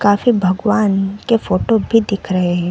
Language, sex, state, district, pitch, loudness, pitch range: Hindi, female, Chhattisgarh, Bilaspur, 205 Hz, -16 LUFS, 190-225 Hz